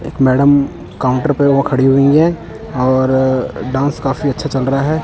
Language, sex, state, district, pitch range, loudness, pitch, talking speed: Hindi, male, Punjab, Kapurthala, 130-140 Hz, -14 LUFS, 135 Hz, 180 wpm